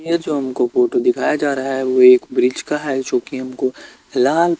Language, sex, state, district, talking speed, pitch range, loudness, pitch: Hindi, male, Bihar, Kaimur, 220 wpm, 130-170 Hz, -17 LUFS, 140 Hz